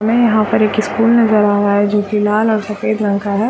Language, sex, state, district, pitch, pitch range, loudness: Hindi, female, Chhattisgarh, Raigarh, 215 Hz, 205-220 Hz, -14 LUFS